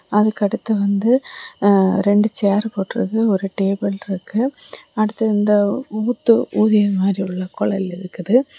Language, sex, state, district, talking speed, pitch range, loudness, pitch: Tamil, female, Tamil Nadu, Kanyakumari, 120 wpm, 195-225 Hz, -18 LUFS, 205 Hz